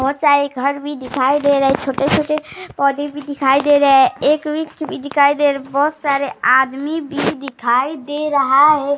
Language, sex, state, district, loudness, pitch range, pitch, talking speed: Hindi, female, Bihar, Bhagalpur, -16 LUFS, 275-290 Hz, 285 Hz, 225 wpm